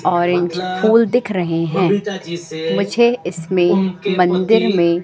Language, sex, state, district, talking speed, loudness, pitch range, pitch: Hindi, female, Madhya Pradesh, Katni, 105 wpm, -17 LUFS, 175-205 Hz, 185 Hz